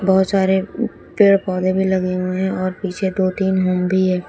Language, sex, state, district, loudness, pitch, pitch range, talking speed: Hindi, female, Uttar Pradesh, Shamli, -18 LUFS, 190 Hz, 185-190 Hz, 210 wpm